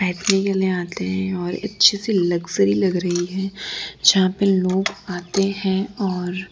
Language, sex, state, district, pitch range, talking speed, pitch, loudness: Hindi, female, Gujarat, Valsad, 180-195 Hz, 140 wpm, 190 Hz, -20 LUFS